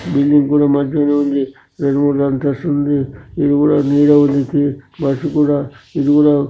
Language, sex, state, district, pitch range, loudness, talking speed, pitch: Telugu, male, Andhra Pradesh, Srikakulam, 140-145 Hz, -15 LUFS, 75 wpm, 145 Hz